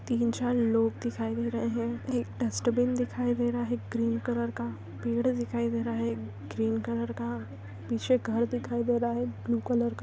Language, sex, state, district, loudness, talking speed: Hindi, female, Andhra Pradesh, Visakhapatnam, -30 LUFS, 205 wpm